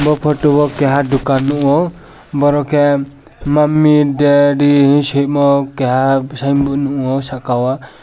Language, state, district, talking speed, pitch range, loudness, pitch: Kokborok, Tripura, West Tripura, 120 wpm, 140-145 Hz, -13 LUFS, 140 Hz